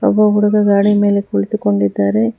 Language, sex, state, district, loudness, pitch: Kannada, female, Karnataka, Bangalore, -14 LUFS, 200 Hz